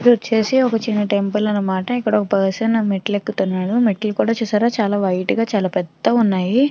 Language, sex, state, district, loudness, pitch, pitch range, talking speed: Telugu, female, Andhra Pradesh, Chittoor, -18 LUFS, 210 Hz, 195-230 Hz, 180 wpm